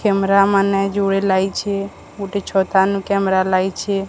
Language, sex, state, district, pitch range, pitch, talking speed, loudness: Odia, female, Odisha, Sambalpur, 190-200 Hz, 195 Hz, 115 wpm, -17 LUFS